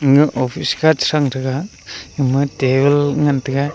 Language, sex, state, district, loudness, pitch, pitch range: Wancho, male, Arunachal Pradesh, Longding, -16 LUFS, 140 Hz, 135-150 Hz